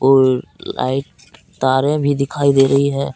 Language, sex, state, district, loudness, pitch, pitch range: Hindi, male, Jharkhand, Deoghar, -16 LUFS, 135 Hz, 130-140 Hz